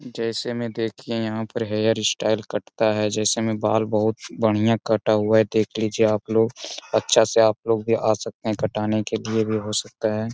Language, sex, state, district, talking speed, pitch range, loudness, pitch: Hindi, male, Bihar, Jamui, 205 wpm, 110-115 Hz, -22 LUFS, 110 Hz